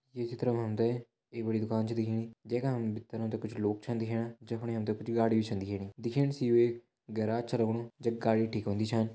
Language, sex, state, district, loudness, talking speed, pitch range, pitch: Hindi, male, Uttarakhand, Tehri Garhwal, -33 LUFS, 250 wpm, 110-120 Hz, 115 Hz